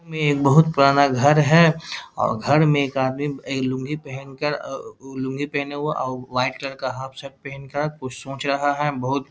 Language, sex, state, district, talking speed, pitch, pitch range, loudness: Hindi, male, Bihar, Jahanabad, 210 wpm, 140 Hz, 135-145 Hz, -21 LUFS